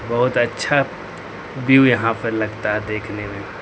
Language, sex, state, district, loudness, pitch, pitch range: Hindi, male, Uttar Pradesh, Lucknow, -19 LUFS, 115 Hz, 105-125 Hz